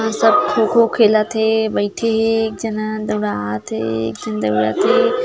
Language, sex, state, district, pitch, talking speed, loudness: Chhattisgarhi, female, Chhattisgarh, Jashpur, 215 Hz, 195 wpm, -17 LUFS